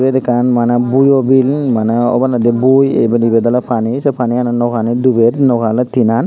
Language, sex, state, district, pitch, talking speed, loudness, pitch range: Chakma, male, Tripura, Unakoti, 120 Hz, 170 wpm, -12 LUFS, 120-130 Hz